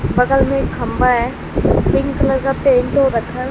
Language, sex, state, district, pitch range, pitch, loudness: Hindi, female, Bihar, West Champaran, 250-270 Hz, 265 Hz, -16 LUFS